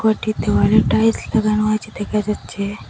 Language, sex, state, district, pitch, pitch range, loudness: Bengali, female, Assam, Hailakandi, 215 Hz, 210-220 Hz, -18 LUFS